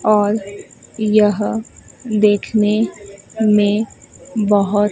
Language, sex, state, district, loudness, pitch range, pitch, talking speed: Hindi, female, Madhya Pradesh, Dhar, -17 LUFS, 205-215 Hz, 210 Hz, 60 wpm